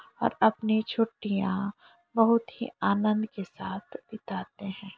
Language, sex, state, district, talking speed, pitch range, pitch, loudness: Hindi, female, Chhattisgarh, Korba, 120 wpm, 195-225 Hz, 210 Hz, -29 LUFS